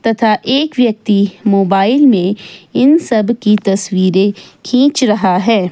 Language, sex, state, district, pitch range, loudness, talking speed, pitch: Hindi, female, Himachal Pradesh, Shimla, 195-240 Hz, -12 LUFS, 125 wpm, 210 Hz